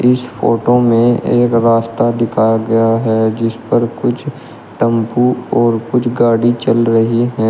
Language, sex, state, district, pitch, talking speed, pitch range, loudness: Hindi, male, Uttar Pradesh, Shamli, 115 Hz, 145 wpm, 115-120 Hz, -13 LUFS